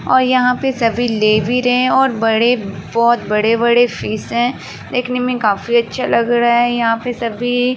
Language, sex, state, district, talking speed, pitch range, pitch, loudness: Hindi, female, Uttar Pradesh, Varanasi, 195 wpm, 230-250 Hz, 240 Hz, -15 LUFS